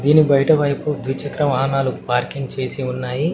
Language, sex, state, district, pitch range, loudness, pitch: Telugu, male, Telangana, Mahabubabad, 130-145 Hz, -19 LUFS, 135 Hz